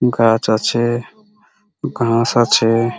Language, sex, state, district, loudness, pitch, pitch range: Bengali, male, West Bengal, Purulia, -15 LUFS, 120 Hz, 115-150 Hz